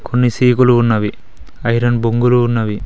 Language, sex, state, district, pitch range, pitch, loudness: Telugu, male, Telangana, Mahabubabad, 115-125 Hz, 120 Hz, -14 LUFS